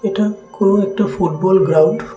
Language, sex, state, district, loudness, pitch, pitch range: Bengali, male, Tripura, West Tripura, -15 LUFS, 195 Hz, 175-205 Hz